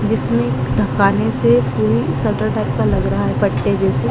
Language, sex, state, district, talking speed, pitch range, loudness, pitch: Hindi, female, Madhya Pradesh, Dhar, 175 wpm, 110-125 Hz, -17 LUFS, 120 Hz